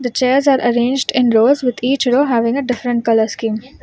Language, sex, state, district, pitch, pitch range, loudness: English, female, Karnataka, Bangalore, 245 Hz, 235-265 Hz, -15 LUFS